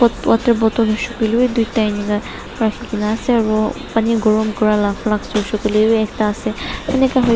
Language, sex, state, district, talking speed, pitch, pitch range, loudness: Nagamese, female, Nagaland, Dimapur, 120 wpm, 220 Hz, 215-230 Hz, -17 LUFS